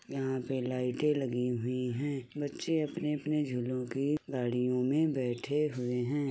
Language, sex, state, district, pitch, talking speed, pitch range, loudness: Hindi, male, Uttar Pradesh, Muzaffarnagar, 135 Hz, 145 wpm, 125-145 Hz, -33 LUFS